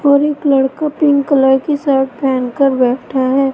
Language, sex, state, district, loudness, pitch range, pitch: Hindi, female, Madhya Pradesh, Katni, -14 LUFS, 265-285 Hz, 275 Hz